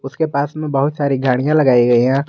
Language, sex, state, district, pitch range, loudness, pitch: Hindi, male, Jharkhand, Garhwa, 130-150 Hz, -16 LUFS, 140 Hz